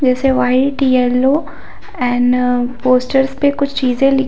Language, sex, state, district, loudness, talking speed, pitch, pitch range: Hindi, female, Jharkhand, Jamtara, -14 LUFS, 125 wpm, 260 Hz, 250-275 Hz